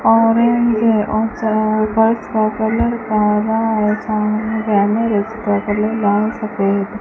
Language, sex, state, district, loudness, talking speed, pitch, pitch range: Hindi, female, Rajasthan, Bikaner, -16 LUFS, 120 wpm, 215 Hz, 210-225 Hz